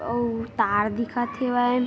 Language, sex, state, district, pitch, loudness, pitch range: Chhattisgarhi, female, Chhattisgarh, Bilaspur, 235 Hz, -25 LUFS, 230-245 Hz